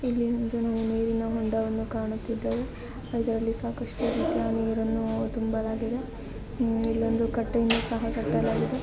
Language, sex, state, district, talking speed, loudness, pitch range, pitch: Kannada, female, Karnataka, Dakshina Kannada, 35 wpm, -28 LUFS, 225-230 Hz, 230 Hz